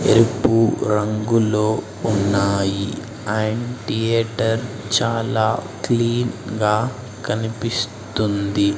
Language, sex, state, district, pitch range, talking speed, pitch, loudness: Telugu, male, Andhra Pradesh, Sri Satya Sai, 105-115 Hz, 60 wpm, 110 Hz, -20 LUFS